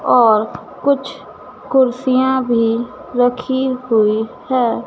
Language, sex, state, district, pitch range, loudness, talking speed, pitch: Hindi, female, Madhya Pradesh, Dhar, 230-260 Hz, -16 LUFS, 85 wpm, 250 Hz